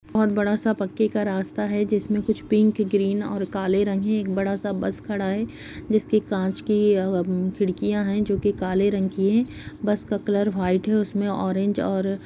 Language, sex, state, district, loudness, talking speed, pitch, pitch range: Kumaoni, female, Uttarakhand, Uttarkashi, -23 LUFS, 205 wpm, 205 Hz, 195-210 Hz